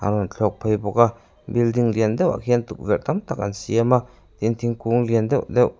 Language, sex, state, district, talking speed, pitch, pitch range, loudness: Mizo, male, Mizoram, Aizawl, 215 wpm, 115 Hz, 105-120 Hz, -21 LUFS